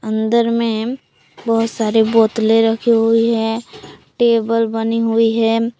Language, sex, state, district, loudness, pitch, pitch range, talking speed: Hindi, female, Jharkhand, Palamu, -16 LUFS, 225 Hz, 225-230 Hz, 125 wpm